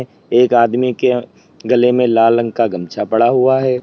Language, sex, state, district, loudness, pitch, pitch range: Hindi, male, Uttar Pradesh, Lalitpur, -14 LUFS, 120 Hz, 115-125 Hz